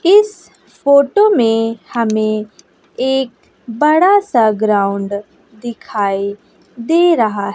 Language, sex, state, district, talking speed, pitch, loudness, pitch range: Hindi, female, Bihar, West Champaran, 85 wpm, 230 Hz, -14 LUFS, 210-305 Hz